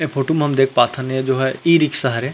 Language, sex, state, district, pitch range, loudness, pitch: Chhattisgarhi, male, Chhattisgarh, Rajnandgaon, 130-150 Hz, -17 LUFS, 135 Hz